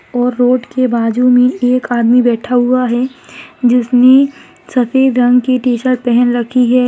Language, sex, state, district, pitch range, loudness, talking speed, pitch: Hindi, female, Maharashtra, Solapur, 245-255 Hz, -12 LUFS, 150 wpm, 250 Hz